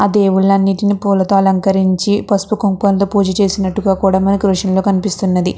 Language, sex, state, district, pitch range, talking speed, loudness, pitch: Telugu, female, Andhra Pradesh, Krishna, 190-200 Hz, 150 wpm, -14 LUFS, 195 Hz